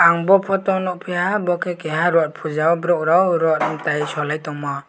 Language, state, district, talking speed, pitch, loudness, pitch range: Kokborok, Tripura, West Tripura, 185 wpm, 170 Hz, -19 LUFS, 155-180 Hz